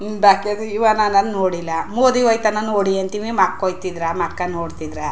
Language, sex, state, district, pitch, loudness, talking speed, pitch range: Kannada, female, Karnataka, Chamarajanagar, 195 Hz, -18 LUFS, 175 wpm, 180-215 Hz